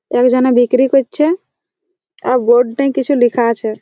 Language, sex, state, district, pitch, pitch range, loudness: Bengali, female, West Bengal, Jhargram, 255 Hz, 245-300 Hz, -13 LUFS